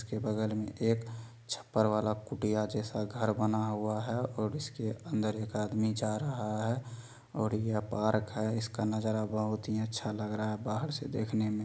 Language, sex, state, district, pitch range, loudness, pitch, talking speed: Maithili, male, Bihar, Supaul, 110-115 Hz, -34 LUFS, 110 Hz, 185 wpm